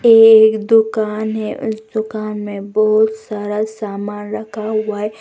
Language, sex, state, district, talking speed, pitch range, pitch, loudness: Hindi, female, Bihar, West Champaran, 140 wpm, 210-220 Hz, 215 Hz, -16 LUFS